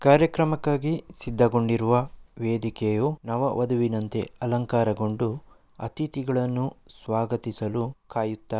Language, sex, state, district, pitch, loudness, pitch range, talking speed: Kannada, male, Karnataka, Mysore, 120 Hz, -26 LUFS, 115-135 Hz, 65 wpm